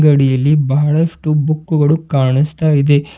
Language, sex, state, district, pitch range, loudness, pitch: Kannada, male, Karnataka, Bidar, 140-155 Hz, -14 LUFS, 150 Hz